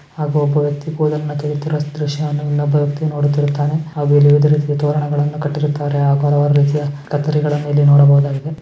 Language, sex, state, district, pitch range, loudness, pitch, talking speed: Kannada, female, Karnataka, Shimoga, 145-150 Hz, -16 LUFS, 145 Hz, 145 wpm